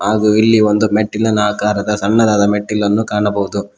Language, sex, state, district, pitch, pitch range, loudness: Kannada, male, Karnataka, Koppal, 105 Hz, 105-110 Hz, -14 LUFS